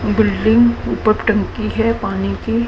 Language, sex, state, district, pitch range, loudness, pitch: Hindi, female, Haryana, Charkhi Dadri, 205-230 Hz, -16 LUFS, 220 Hz